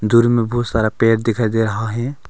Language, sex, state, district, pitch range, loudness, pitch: Hindi, male, Arunachal Pradesh, Longding, 110-120 Hz, -17 LUFS, 115 Hz